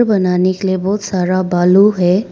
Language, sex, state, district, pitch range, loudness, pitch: Hindi, female, Arunachal Pradesh, Papum Pare, 180-200 Hz, -14 LUFS, 185 Hz